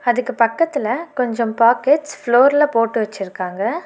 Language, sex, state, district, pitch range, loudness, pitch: Tamil, female, Tamil Nadu, Nilgiris, 230-285 Hz, -17 LUFS, 240 Hz